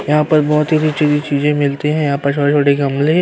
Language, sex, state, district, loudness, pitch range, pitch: Hindi, male, Uttar Pradesh, Hamirpur, -15 LUFS, 145-150 Hz, 150 Hz